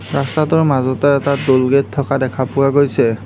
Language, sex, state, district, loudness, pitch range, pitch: Assamese, male, Assam, Hailakandi, -15 LUFS, 130-140 Hz, 140 Hz